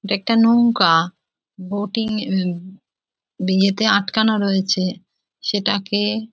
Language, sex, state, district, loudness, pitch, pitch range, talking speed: Bengali, female, West Bengal, Jhargram, -18 LUFS, 200 Hz, 190-220 Hz, 85 wpm